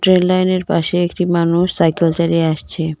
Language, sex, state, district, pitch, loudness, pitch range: Bengali, female, West Bengal, Cooch Behar, 170 Hz, -16 LUFS, 165-180 Hz